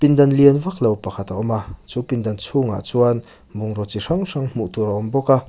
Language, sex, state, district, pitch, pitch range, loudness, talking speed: Mizo, male, Mizoram, Aizawl, 115 Hz, 105-135 Hz, -19 LUFS, 230 wpm